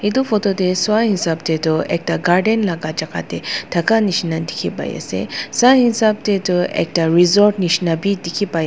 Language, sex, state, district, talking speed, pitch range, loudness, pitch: Nagamese, female, Nagaland, Dimapur, 185 wpm, 165-210 Hz, -17 LUFS, 185 Hz